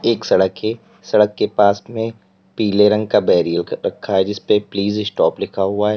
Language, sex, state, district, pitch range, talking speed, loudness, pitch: Hindi, male, Uttar Pradesh, Lalitpur, 95-105 Hz, 210 wpm, -17 LUFS, 105 Hz